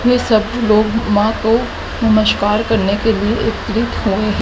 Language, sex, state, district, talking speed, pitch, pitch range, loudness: Hindi, female, Haryana, Jhajjar, 150 wpm, 220 Hz, 210-225 Hz, -15 LUFS